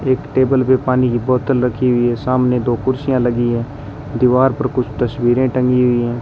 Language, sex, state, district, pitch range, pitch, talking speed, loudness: Hindi, male, Rajasthan, Bikaner, 120-130 Hz, 125 Hz, 200 wpm, -16 LUFS